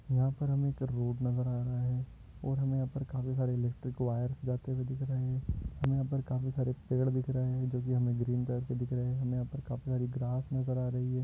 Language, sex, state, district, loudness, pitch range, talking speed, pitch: Hindi, male, Maharashtra, Dhule, -34 LUFS, 125-130 Hz, 260 wpm, 130 Hz